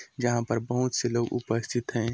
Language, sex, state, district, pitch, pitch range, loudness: Hindi, male, Chhattisgarh, Korba, 120 Hz, 115-120 Hz, -28 LUFS